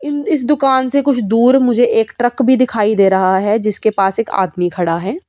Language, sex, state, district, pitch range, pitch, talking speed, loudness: Hindi, female, Punjab, Pathankot, 195-260 Hz, 225 Hz, 215 wpm, -14 LUFS